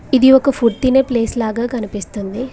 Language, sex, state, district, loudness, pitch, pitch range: Telugu, female, Telangana, Mahabubabad, -15 LUFS, 240 Hz, 220-260 Hz